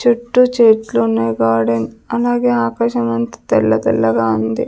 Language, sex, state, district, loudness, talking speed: Telugu, female, Andhra Pradesh, Sri Satya Sai, -15 LUFS, 115 wpm